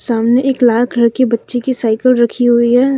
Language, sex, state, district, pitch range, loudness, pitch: Hindi, female, Jharkhand, Deoghar, 235-255 Hz, -13 LUFS, 240 Hz